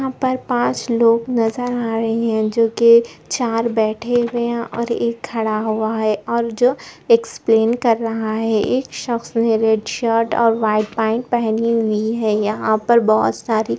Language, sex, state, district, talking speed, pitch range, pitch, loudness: Hindi, female, Bihar, Gopalganj, 180 wpm, 220-235 Hz, 230 Hz, -18 LUFS